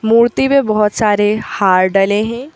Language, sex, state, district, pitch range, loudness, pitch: Hindi, female, Madhya Pradesh, Bhopal, 205-240 Hz, -13 LUFS, 215 Hz